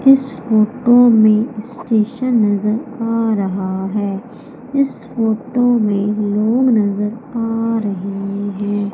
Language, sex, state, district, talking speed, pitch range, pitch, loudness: Hindi, female, Madhya Pradesh, Umaria, 105 wpm, 205-245 Hz, 220 Hz, -16 LUFS